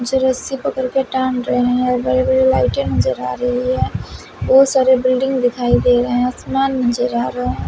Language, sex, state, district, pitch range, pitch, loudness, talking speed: Hindi, female, Bihar, West Champaran, 240-260 Hz, 250 Hz, -16 LUFS, 180 wpm